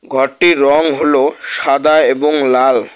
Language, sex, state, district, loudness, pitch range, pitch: Bengali, male, West Bengal, Alipurduar, -12 LUFS, 135-155 Hz, 145 Hz